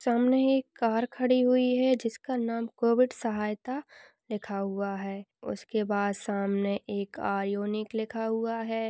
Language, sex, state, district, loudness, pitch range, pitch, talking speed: Hindi, female, Maharashtra, Aurangabad, -29 LUFS, 205-250 Hz, 225 Hz, 140 wpm